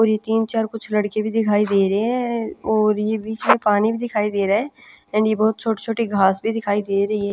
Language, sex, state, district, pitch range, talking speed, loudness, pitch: Hindi, female, Punjab, Pathankot, 205-225 Hz, 260 wpm, -20 LUFS, 215 Hz